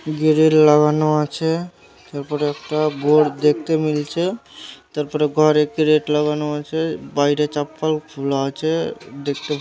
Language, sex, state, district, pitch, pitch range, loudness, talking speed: Bengali, male, West Bengal, Malda, 150 Hz, 150-155 Hz, -19 LUFS, 110 wpm